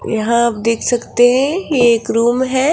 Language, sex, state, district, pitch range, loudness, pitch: Hindi, female, Rajasthan, Jaipur, 230-260 Hz, -14 LUFS, 240 Hz